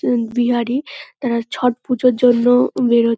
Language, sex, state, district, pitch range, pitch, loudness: Bengali, female, West Bengal, Kolkata, 235-250 Hz, 245 Hz, -17 LUFS